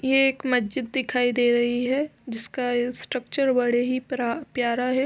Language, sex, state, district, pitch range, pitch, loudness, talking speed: Hindi, female, Uttar Pradesh, Etah, 240-265 Hz, 250 Hz, -24 LUFS, 165 wpm